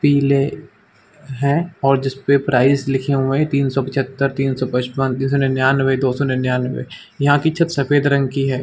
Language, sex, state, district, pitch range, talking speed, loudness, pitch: Hindi, male, Uttar Pradesh, Muzaffarnagar, 135-140 Hz, 195 wpm, -18 LUFS, 135 Hz